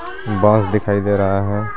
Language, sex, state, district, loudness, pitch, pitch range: Hindi, male, Jharkhand, Garhwa, -17 LUFS, 100 Hz, 100-105 Hz